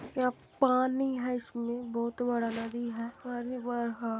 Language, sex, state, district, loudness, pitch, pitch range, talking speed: Hindi, female, Bihar, Supaul, -32 LUFS, 240 Hz, 235-250 Hz, 170 wpm